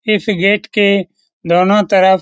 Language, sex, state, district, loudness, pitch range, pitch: Hindi, male, Bihar, Lakhisarai, -13 LUFS, 190-210 Hz, 200 Hz